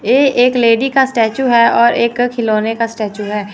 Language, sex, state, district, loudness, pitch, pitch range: Hindi, female, Chandigarh, Chandigarh, -13 LUFS, 235 Hz, 220-250 Hz